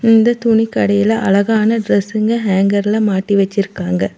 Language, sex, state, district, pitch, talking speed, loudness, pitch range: Tamil, female, Tamil Nadu, Nilgiris, 210 Hz, 100 wpm, -14 LUFS, 200-225 Hz